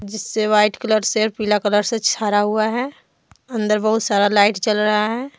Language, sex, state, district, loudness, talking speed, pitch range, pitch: Hindi, female, Jharkhand, Deoghar, -18 LUFS, 190 wpm, 210-220 Hz, 215 Hz